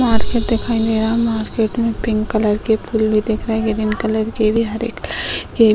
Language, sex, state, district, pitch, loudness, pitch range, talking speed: Hindi, female, Uttar Pradesh, Hamirpur, 220 Hz, -18 LUFS, 215-230 Hz, 220 wpm